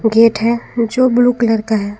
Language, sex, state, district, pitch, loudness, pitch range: Hindi, female, Jharkhand, Garhwa, 230 Hz, -14 LUFS, 220-240 Hz